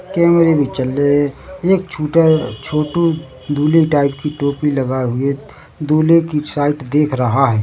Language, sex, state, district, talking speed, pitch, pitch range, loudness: Hindi, male, Chhattisgarh, Bilaspur, 155 wpm, 150 Hz, 140-160 Hz, -16 LUFS